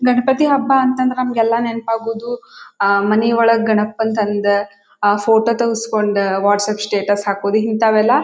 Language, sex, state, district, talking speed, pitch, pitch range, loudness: Kannada, female, Karnataka, Dharwad, 140 wpm, 225 Hz, 205-235 Hz, -16 LUFS